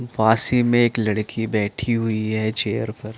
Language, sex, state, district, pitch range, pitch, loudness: Hindi, male, Chandigarh, Chandigarh, 110-120 Hz, 110 Hz, -20 LUFS